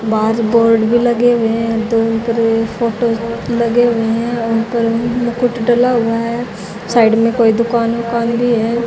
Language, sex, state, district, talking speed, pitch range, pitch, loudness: Hindi, female, Haryana, Jhajjar, 170 wpm, 225-235 Hz, 230 Hz, -14 LUFS